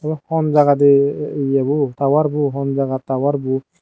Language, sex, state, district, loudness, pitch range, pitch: Chakma, male, Tripura, Dhalai, -17 LUFS, 135-150 Hz, 140 Hz